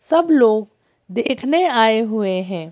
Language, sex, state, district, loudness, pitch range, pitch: Hindi, female, Madhya Pradesh, Bhopal, -17 LUFS, 205-280 Hz, 225 Hz